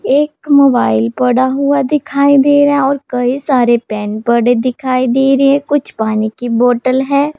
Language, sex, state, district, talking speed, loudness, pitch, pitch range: Hindi, female, Punjab, Pathankot, 180 wpm, -12 LUFS, 260 Hz, 245-280 Hz